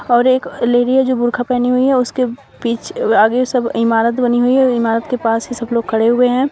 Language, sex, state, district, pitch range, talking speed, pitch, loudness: Hindi, female, Uttar Pradesh, Shamli, 235-255 Hz, 250 wpm, 245 Hz, -15 LUFS